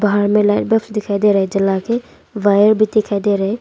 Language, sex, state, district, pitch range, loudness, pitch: Hindi, female, Arunachal Pradesh, Longding, 200-215 Hz, -15 LUFS, 205 Hz